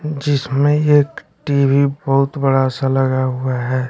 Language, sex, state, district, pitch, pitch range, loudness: Hindi, male, Bihar, West Champaran, 135 Hz, 130-145 Hz, -16 LUFS